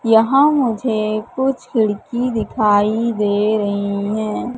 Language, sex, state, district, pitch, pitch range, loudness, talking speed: Hindi, female, Madhya Pradesh, Katni, 220 Hz, 210-245 Hz, -17 LUFS, 105 wpm